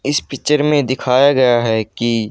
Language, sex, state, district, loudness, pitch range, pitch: Hindi, male, Haryana, Charkhi Dadri, -15 LUFS, 115-145 Hz, 130 Hz